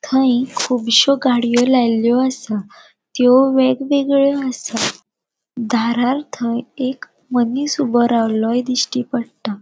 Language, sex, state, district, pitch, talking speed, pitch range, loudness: Konkani, female, Goa, North and South Goa, 250 Hz, 105 wpm, 235-265 Hz, -17 LUFS